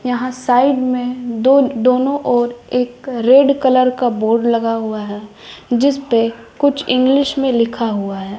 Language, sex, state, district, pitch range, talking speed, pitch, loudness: Hindi, female, Bihar, West Champaran, 230-260 Hz, 155 wpm, 245 Hz, -15 LUFS